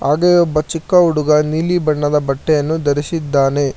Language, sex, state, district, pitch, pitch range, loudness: Kannada, male, Karnataka, Bangalore, 155 Hz, 145-165 Hz, -15 LUFS